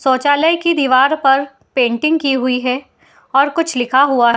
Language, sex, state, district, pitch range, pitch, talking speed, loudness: Hindi, female, Uttar Pradesh, Muzaffarnagar, 255-290 Hz, 270 Hz, 180 wpm, -15 LUFS